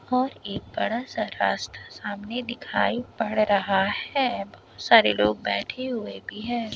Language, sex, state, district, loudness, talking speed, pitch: Hindi, female, Bihar, Kishanganj, -25 LUFS, 150 wpm, 215 Hz